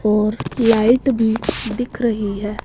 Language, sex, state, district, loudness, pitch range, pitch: Hindi, male, Punjab, Fazilka, -18 LUFS, 210-235 Hz, 225 Hz